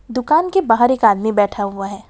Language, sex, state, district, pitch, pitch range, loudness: Hindi, female, Assam, Kamrup Metropolitan, 225 Hz, 200-255 Hz, -16 LUFS